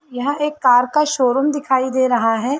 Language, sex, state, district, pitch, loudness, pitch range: Hindi, female, Uttar Pradesh, Varanasi, 260 Hz, -17 LUFS, 250-290 Hz